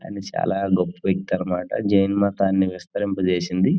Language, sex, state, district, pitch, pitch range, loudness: Telugu, male, Andhra Pradesh, Krishna, 95 Hz, 90-100 Hz, -22 LUFS